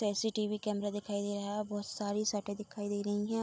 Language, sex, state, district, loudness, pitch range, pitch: Hindi, female, Uttar Pradesh, Budaun, -36 LUFS, 205-210 Hz, 205 Hz